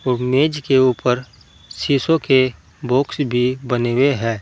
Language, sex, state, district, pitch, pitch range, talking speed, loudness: Hindi, male, Uttar Pradesh, Saharanpur, 130 Hz, 125-140 Hz, 150 wpm, -18 LUFS